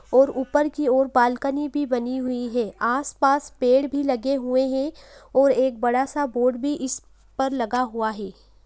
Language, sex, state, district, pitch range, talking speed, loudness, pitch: Hindi, female, Uttarakhand, Uttarkashi, 250-275 Hz, 175 wpm, -23 LUFS, 260 Hz